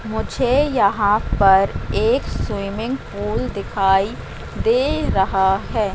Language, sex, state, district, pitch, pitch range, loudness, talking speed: Hindi, female, Madhya Pradesh, Katni, 205 Hz, 195-255 Hz, -19 LUFS, 100 wpm